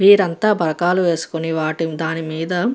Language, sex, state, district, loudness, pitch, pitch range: Telugu, female, Andhra Pradesh, Guntur, -19 LUFS, 165 Hz, 160-185 Hz